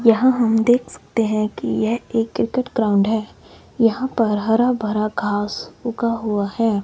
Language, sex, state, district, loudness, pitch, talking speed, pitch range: Hindi, male, Himachal Pradesh, Shimla, -20 LUFS, 225 Hz, 165 wpm, 215-235 Hz